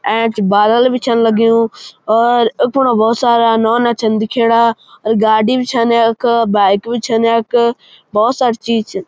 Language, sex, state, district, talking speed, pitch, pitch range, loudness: Garhwali, male, Uttarakhand, Uttarkashi, 170 wpm, 230 Hz, 220-235 Hz, -13 LUFS